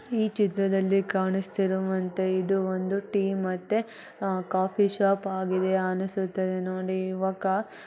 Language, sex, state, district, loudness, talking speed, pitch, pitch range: Kannada, female, Karnataka, Bellary, -27 LUFS, 105 wpm, 190 Hz, 185-195 Hz